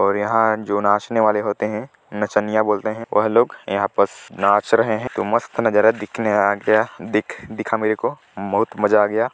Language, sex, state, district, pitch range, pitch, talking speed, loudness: Hindi, male, Chhattisgarh, Sarguja, 105-115 Hz, 110 Hz, 205 wpm, -19 LUFS